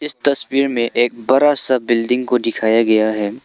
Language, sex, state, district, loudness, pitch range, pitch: Hindi, male, Arunachal Pradesh, Lower Dibang Valley, -16 LUFS, 115-135 Hz, 120 Hz